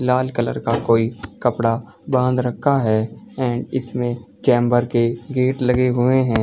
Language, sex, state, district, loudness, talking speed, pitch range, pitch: Hindi, male, Chhattisgarh, Balrampur, -20 LUFS, 150 wpm, 115-130 Hz, 120 Hz